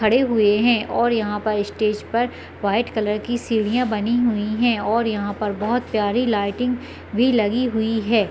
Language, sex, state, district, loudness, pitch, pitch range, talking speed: Hindi, female, Chhattisgarh, Bilaspur, -21 LUFS, 220 Hz, 210-240 Hz, 180 wpm